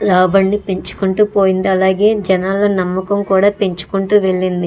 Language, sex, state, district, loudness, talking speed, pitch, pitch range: Telugu, female, Andhra Pradesh, Chittoor, -14 LUFS, 115 wpm, 195 Hz, 185-200 Hz